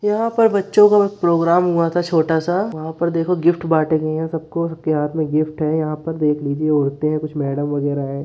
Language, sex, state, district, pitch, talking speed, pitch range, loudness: Hindi, male, Uttar Pradesh, Muzaffarnagar, 160 Hz, 225 wpm, 155-175 Hz, -18 LUFS